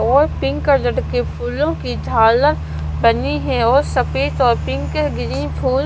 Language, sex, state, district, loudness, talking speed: Hindi, female, Punjab, Kapurthala, -17 LUFS, 155 wpm